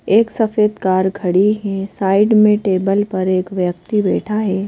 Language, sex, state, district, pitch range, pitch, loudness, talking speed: Hindi, female, Madhya Pradesh, Bhopal, 190-210 Hz, 200 Hz, -16 LUFS, 165 wpm